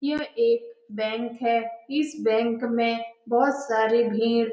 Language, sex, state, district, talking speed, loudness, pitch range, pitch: Hindi, female, Bihar, Lakhisarai, 160 wpm, -25 LUFS, 230-275 Hz, 230 Hz